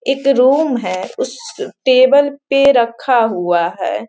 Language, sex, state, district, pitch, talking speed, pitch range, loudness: Hindi, female, Bihar, Sitamarhi, 260 Hz, 130 wpm, 230-280 Hz, -14 LUFS